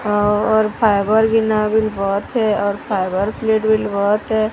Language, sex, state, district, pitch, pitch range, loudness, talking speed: Hindi, female, Odisha, Sambalpur, 215 Hz, 205-220 Hz, -17 LUFS, 130 wpm